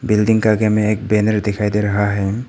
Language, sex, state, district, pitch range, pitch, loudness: Hindi, male, Arunachal Pradesh, Papum Pare, 105-110 Hz, 105 Hz, -16 LUFS